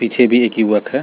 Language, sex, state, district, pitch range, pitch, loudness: Hindi, male, Chhattisgarh, Rajnandgaon, 110-125 Hz, 120 Hz, -14 LUFS